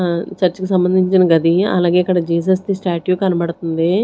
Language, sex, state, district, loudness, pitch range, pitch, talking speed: Telugu, female, Andhra Pradesh, Sri Satya Sai, -16 LUFS, 170-185 Hz, 180 Hz, 165 wpm